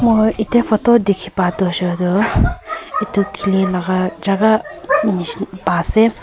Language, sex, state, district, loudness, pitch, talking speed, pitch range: Nagamese, female, Nagaland, Kohima, -16 LUFS, 200 Hz, 155 wpm, 185-220 Hz